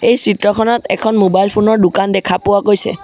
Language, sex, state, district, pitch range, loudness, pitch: Assamese, male, Assam, Sonitpur, 195-220 Hz, -13 LUFS, 205 Hz